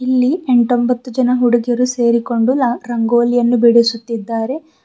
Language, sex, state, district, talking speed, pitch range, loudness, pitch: Kannada, female, Karnataka, Bidar, 100 wpm, 235-250 Hz, -15 LUFS, 240 Hz